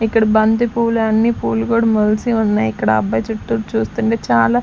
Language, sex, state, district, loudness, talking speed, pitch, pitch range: Telugu, female, Andhra Pradesh, Sri Satya Sai, -16 LUFS, 170 wpm, 220 Hz, 210-230 Hz